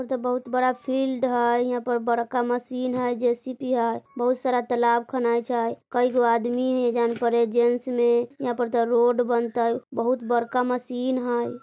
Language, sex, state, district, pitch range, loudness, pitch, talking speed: Bajjika, female, Bihar, Vaishali, 235-250 Hz, -24 LUFS, 245 Hz, 175 wpm